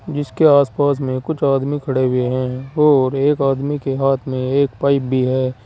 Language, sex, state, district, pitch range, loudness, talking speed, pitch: Hindi, male, Uttar Pradesh, Saharanpur, 130-145 Hz, -17 LUFS, 190 wpm, 135 Hz